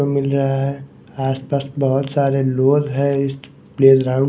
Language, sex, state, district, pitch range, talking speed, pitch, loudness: Hindi, male, Bihar, West Champaran, 135-140 Hz, 180 wpm, 135 Hz, -18 LUFS